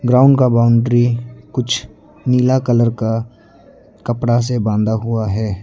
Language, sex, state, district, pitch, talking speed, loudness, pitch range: Hindi, male, Arunachal Pradesh, Lower Dibang Valley, 120 Hz, 130 wpm, -16 LUFS, 110-125 Hz